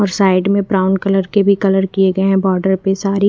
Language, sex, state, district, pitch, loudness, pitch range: Hindi, female, Bihar, Kaimur, 195 Hz, -14 LUFS, 190-200 Hz